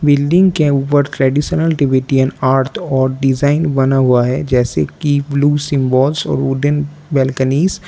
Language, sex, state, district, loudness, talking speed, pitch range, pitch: Hindi, male, Arunachal Pradesh, Lower Dibang Valley, -14 LUFS, 145 wpm, 130-145 Hz, 140 Hz